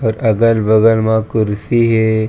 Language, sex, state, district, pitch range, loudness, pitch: Chhattisgarhi, male, Chhattisgarh, Raigarh, 110-115 Hz, -13 LUFS, 110 Hz